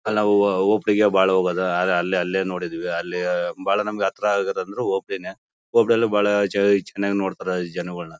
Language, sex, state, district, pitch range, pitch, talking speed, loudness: Kannada, male, Karnataka, Bellary, 90-105 Hz, 95 Hz, 185 wpm, -21 LUFS